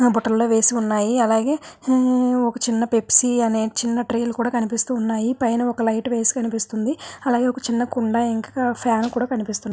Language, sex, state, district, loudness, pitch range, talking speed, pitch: Telugu, female, Andhra Pradesh, Visakhapatnam, -20 LUFS, 225-245 Hz, 150 wpm, 235 Hz